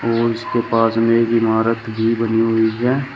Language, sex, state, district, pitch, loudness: Hindi, male, Uttar Pradesh, Shamli, 115 Hz, -17 LUFS